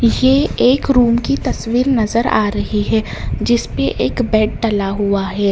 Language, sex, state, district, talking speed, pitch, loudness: Hindi, male, Karnataka, Bangalore, 150 wpm, 215 Hz, -16 LUFS